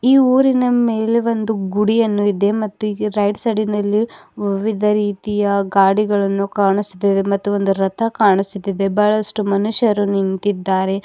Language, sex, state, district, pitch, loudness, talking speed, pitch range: Kannada, female, Karnataka, Bidar, 205 Hz, -17 LUFS, 110 wpm, 200-215 Hz